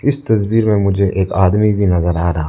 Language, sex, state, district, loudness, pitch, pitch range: Hindi, male, Arunachal Pradesh, Lower Dibang Valley, -14 LUFS, 100 Hz, 90-105 Hz